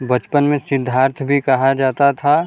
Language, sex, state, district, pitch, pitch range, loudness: Hindi, male, Bihar, Vaishali, 135 Hz, 130-140 Hz, -16 LUFS